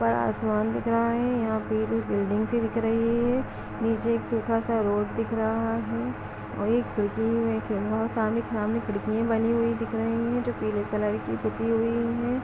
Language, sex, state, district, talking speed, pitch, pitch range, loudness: Hindi, female, Uttar Pradesh, Etah, 175 wpm, 225 Hz, 205-230 Hz, -27 LUFS